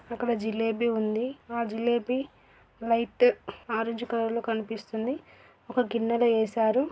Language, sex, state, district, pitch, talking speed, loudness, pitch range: Telugu, female, Andhra Pradesh, Guntur, 230 Hz, 105 wpm, -28 LUFS, 225-240 Hz